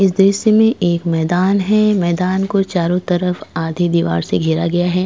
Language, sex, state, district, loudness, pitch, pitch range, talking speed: Hindi, female, Goa, North and South Goa, -16 LUFS, 180 Hz, 170-195 Hz, 190 wpm